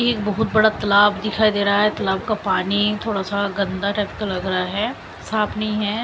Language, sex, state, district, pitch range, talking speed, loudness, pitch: Hindi, female, Chandigarh, Chandigarh, 200-215 Hz, 210 wpm, -20 LUFS, 210 Hz